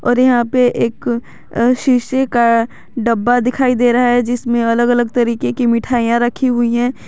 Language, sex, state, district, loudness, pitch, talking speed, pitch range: Hindi, female, Jharkhand, Garhwa, -15 LUFS, 240 Hz, 170 wpm, 235-245 Hz